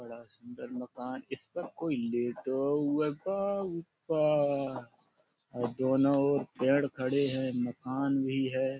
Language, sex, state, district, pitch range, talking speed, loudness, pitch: Hindi, male, Uttar Pradesh, Budaun, 130-150 Hz, 135 wpm, -32 LUFS, 135 Hz